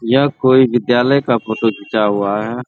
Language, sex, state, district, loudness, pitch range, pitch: Hindi, male, Bihar, Araria, -15 LUFS, 110-130 Hz, 120 Hz